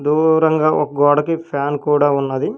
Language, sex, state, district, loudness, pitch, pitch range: Telugu, male, Telangana, Hyderabad, -16 LUFS, 145 Hz, 145-155 Hz